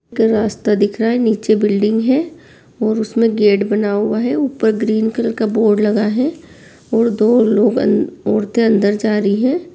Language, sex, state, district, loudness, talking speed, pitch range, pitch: Hindi, female, Bihar, Begusarai, -15 LUFS, 190 wpm, 210-230 Hz, 220 Hz